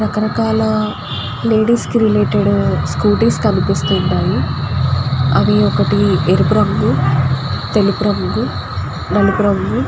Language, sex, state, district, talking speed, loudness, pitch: Telugu, female, Andhra Pradesh, Guntur, 95 wpm, -15 LUFS, 130 Hz